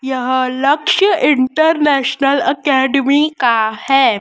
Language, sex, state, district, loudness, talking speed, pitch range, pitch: Hindi, male, Madhya Pradesh, Dhar, -14 LUFS, 85 wpm, 260-295 Hz, 270 Hz